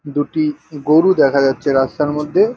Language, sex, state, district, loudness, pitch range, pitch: Bengali, male, West Bengal, North 24 Parganas, -15 LUFS, 140-155 Hz, 150 Hz